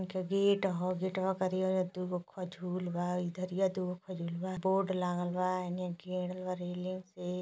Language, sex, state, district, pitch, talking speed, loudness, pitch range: Hindi, female, Uttar Pradesh, Gorakhpur, 185 Hz, 180 wpm, -35 LUFS, 180-185 Hz